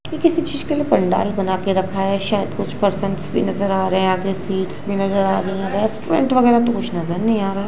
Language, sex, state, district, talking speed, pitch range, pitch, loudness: Hindi, female, Gujarat, Gandhinagar, 250 wpm, 190-220 Hz, 195 Hz, -19 LUFS